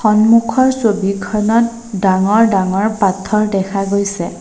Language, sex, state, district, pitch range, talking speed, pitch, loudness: Assamese, female, Assam, Sonitpur, 195-225 Hz, 95 wpm, 210 Hz, -14 LUFS